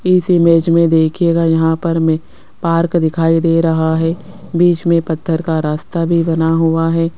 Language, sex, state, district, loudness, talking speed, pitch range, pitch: Hindi, female, Rajasthan, Jaipur, -14 LUFS, 175 wpm, 160-170 Hz, 165 Hz